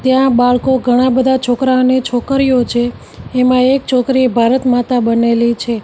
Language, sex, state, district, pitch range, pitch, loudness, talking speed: Gujarati, female, Gujarat, Gandhinagar, 245-260 Hz, 250 Hz, -13 LUFS, 145 wpm